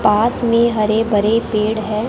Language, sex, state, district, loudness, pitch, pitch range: Hindi, female, Rajasthan, Bikaner, -16 LUFS, 220 Hz, 215-230 Hz